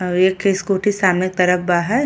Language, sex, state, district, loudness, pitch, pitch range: Bhojpuri, female, Uttar Pradesh, Ghazipur, -17 LUFS, 185 Hz, 180-195 Hz